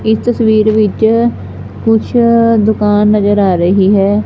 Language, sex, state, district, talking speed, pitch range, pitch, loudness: Punjabi, female, Punjab, Fazilka, 125 wpm, 205-225 Hz, 215 Hz, -10 LUFS